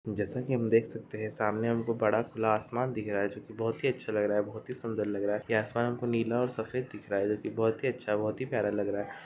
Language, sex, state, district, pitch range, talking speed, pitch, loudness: Hindi, male, Rajasthan, Churu, 105-115 Hz, 315 wpm, 110 Hz, -31 LUFS